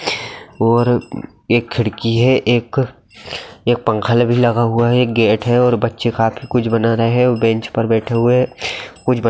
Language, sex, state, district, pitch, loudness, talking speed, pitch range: Magahi, male, Bihar, Gaya, 120 Hz, -16 LUFS, 185 wpm, 115-120 Hz